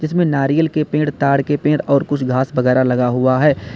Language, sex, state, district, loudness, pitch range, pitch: Hindi, male, Uttar Pradesh, Lalitpur, -16 LUFS, 130-150 Hz, 140 Hz